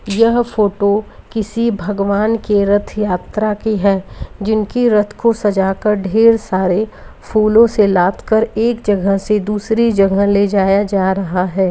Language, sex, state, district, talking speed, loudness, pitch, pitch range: Bhojpuri, male, Uttar Pradesh, Gorakhpur, 145 wpm, -15 LUFS, 205 Hz, 195-220 Hz